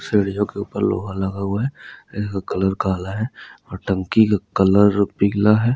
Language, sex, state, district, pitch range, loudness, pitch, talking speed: Hindi, male, Rajasthan, Nagaur, 95-105 Hz, -20 LUFS, 100 Hz, 175 wpm